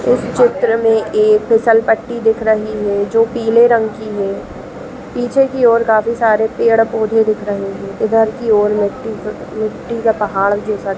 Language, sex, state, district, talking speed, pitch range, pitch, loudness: Hindi, female, Chhattisgarh, Raigarh, 180 wpm, 215-230 Hz, 220 Hz, -14 LUFS